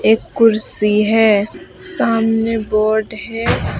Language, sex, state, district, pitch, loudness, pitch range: Hindi, female, West Bengal, Alipurduar, 215 Hz, -15 LUFS, 210-225 Hz